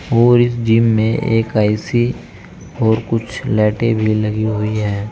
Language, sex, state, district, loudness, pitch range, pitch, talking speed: Hindi, male, Uttar Pradesh, Saharanpur, -16 LUFS, 110-115 Hz, 110 Hz, 150 wpm